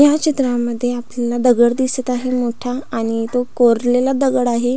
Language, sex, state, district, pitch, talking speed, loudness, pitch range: Marathi, female, Maharashtra, Pune, 245 Hz, 150 wpm, -17 LUFS, 240-255 Hz